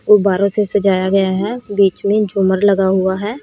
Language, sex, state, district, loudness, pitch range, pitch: Hindi, female, Haryana, Rohtak, -15 LUFS, 190-210 Hz, 200 Hz